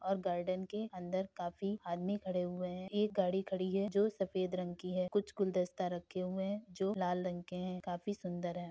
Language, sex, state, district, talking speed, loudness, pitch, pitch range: Hindi, male, Uttar Pradesh, Muzaffarnagar, 215 wpm, -38 LUFS, 185 Hz, 180-195 Hz